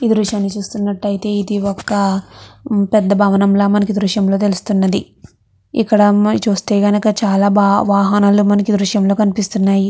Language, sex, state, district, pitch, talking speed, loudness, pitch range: Telugu, female, Andhra Pradesh, Chittoor, 205 Hz, 135 wpm, -15 LUFS, 200-210 Hz